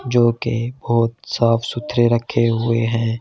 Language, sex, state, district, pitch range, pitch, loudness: Hindi, male, Delhi, New Delhi, 115-120 Hz, 115 Hz, -19 LUFS